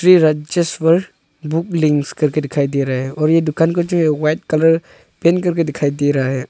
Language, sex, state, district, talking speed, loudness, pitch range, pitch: Hindi, male, Arunachal Pradesh, Longding, 195 wpm, -16 LUFS, 145-165 Hz, 155 Hz